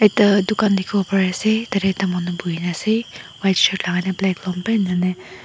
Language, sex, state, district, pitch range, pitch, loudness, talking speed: Nagamese, female, Nagaland, Dimapur, 180-205 Hz, 190 Hz, -19 LUFS, 240 wpm